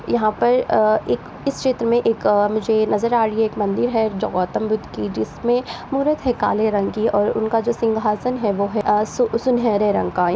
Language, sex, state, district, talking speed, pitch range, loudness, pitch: Hindi, female, Uttar Pradesh, Ghazipur, 220 wpm, 210-240 Hz, -19 LUFS, 220 Hz